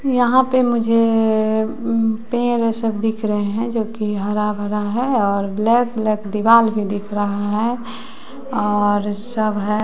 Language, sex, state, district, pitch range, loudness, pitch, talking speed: Hindi, female, Bihar, West Champaran, 210-235 Hz, -18 LUFS, 220 Hz, 145 wpm